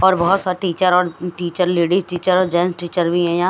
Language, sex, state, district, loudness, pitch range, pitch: Hindi, female, Himachal Pradesh, Shimla, -18 LUFS, 175-185 Hz, 180 Hz